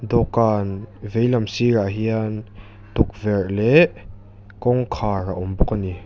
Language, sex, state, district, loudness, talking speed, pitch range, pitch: Mizo, male, Mizoram, Aizawl, -20 LUFS, 120 wpm, 100-115 Hz, 105 Hz